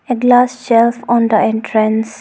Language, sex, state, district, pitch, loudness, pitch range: English, female, Arunachal Pradesh, Longding, 230 Hz, -13 LUFS, 220-245 Hz